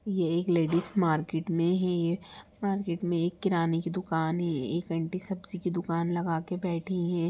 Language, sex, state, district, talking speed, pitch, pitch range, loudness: Hindi, female, Bihar, Samastipur, 170 wpm, 170 Hz, 165-185 Hz, -30 LUFS